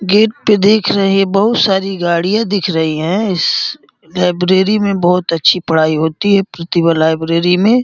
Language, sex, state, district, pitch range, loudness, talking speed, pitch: Hindi, male, Uttar Pradesh, Gorakhpur, 170-200 Hz, -13 LUFS, 160 wpm, 185 Hz